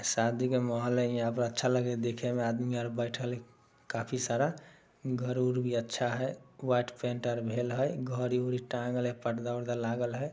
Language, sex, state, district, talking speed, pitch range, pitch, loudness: Maithili, male, Bihar, Samastipur, 155 wpm, 120-125 Hz, 120 Hz, -33 LUFS